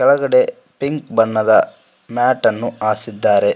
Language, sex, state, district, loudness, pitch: Kannada, male, Karnataka, Koppal, -16 LUFS, 120 Hz